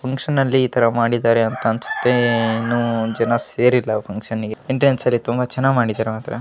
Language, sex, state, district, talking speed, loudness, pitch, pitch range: Kannada, male, Karnataka, Gulbarga, 160 wpm, -18 LUFS, 120 Hz, 115-125 Hz